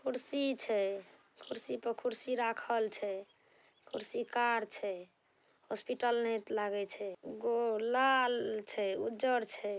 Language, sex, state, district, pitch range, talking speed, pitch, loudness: Maithili, female, Bihar, Saharsa, 205-245 Hz, 100 wpm, 230 Hz, -36 LUFS